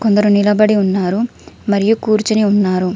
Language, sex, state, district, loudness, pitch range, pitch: Telugu, female, Telangana, Komaram Bheem, -14 LUFS, 200-215 Hz, 210 Hz